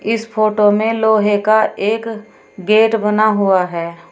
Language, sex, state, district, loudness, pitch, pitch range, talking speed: Hindi, female, Uttar Pradesh, Shamli, -15 LUFS, 215 Hz, 205-220 Hz, 145 wpm